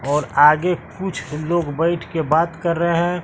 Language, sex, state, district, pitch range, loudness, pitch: Hindi, male, Bihar, West Champaran, 150-175 Hz, -19 LUFS, 165 Hz